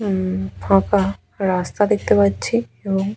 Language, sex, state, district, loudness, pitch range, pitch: Bengali, female, West Bengal, Jalpaiguri, -19 LUFS, 185-205 Hz, 195 Hz